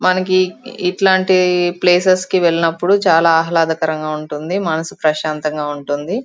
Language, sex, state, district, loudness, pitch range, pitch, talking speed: Telugu, female, Andhra Pradesh, Chittoor, -15 LUFS, 155-185 Hz, 170 Hz, 105 wpm